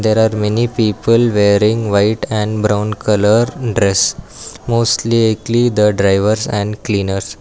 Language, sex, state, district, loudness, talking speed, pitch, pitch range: English, male, Karnataka, Bangalore, -14 LUFS, 120 wpm, 105 Hz, 105-115 Hz